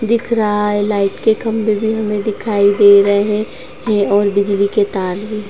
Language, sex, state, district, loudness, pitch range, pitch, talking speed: Hindi, female, Uttar Pradesh, Jalaun, -14 LUFS, 200-215 Hz, 210 Hz, 185 wpm